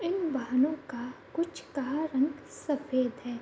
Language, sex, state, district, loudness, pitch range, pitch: Hindi, female, Bihar, Kishanganj, -32 LUFS, 255-310 Hz, 275 Hz